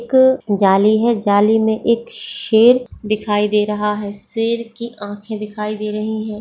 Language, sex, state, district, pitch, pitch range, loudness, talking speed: Hindi, female, Bihar, Begusarai, 215 Hz, 210-230 Hz, -17 LUFS, 170 wpm